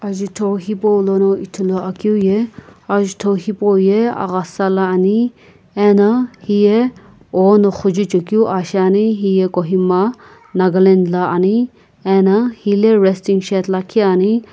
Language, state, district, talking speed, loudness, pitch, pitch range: Sumi, Nagaland, Kohima, 105 wpm, -15 LUFS, 200 Hz, 190-210 Hz